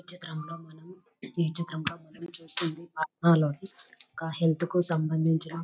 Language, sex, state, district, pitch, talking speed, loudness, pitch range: Telugu, female, Telangana, Nalgonda, 165 Hz, 150 wpm, -29 LUFS, 160-170 Hz